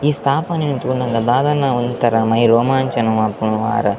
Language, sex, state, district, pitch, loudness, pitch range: Tulu, male, Karnataka, Dakshina Kannada, 120 Hz, -16 LUFS, 115-135 Hz